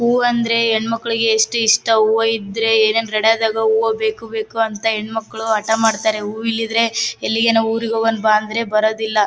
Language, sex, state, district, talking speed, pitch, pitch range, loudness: Kannada, female, Karnataka, Bellary, 155 wpm, 225 Hz, 220-225 Hz, -17 LUFS